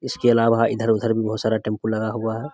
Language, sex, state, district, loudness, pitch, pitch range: Hindi, male, Bihar, Samastipur, -21 LUFS, 110 Hz, 110-115 Hz